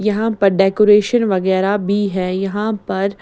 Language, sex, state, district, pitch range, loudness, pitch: Hindi, female, Maharashtra, Mumbai Suburban, 195-210 Hz, -16 LUFS, 200 Hz